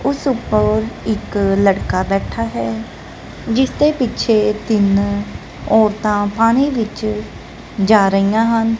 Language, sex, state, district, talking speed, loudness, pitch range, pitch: Punjabi, female, Punjab, Kapurthala, 100 wpm, -16 LUFS, 200-225 Hz, 215 Hz